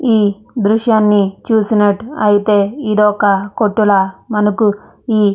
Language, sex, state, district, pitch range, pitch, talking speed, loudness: Telugu, female, Andhra Pradesh, Chittoor, 205-220 Hz, 210 Hz, 135 wpm, -14 LUFS